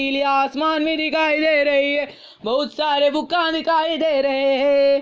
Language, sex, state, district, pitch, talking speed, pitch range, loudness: Hindi, female, Andhra Pradesh, Anantapur, 290 Hz, 165 wpm, 275-315 Hz, -19 LUFS